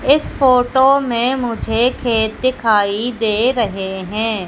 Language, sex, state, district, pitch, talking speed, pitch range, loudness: Hindi, female, Madhya Pradesh, Katni, 235 Hz, 120 wpm, 215-255 Hz, -16 LUFS